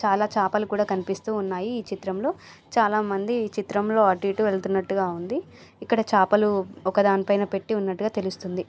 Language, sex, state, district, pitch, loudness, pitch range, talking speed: Telugu, female, Andhra Pradesh, Chittoor, 200 Hz, -24 LUFS, 195-210 Hz, 145 wpm